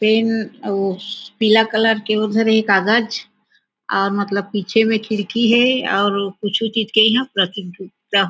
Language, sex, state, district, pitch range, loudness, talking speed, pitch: Chhattisgarhi, female, Chhattisgarh, Raigarh, 200-225 Hz, -17 LUFS, 150 wpm, 215 Hz